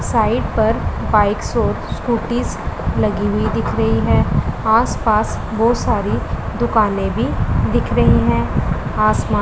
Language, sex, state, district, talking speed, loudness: Hindi, female, Punjab, Pathankot, 125 wpm, -17 LUFS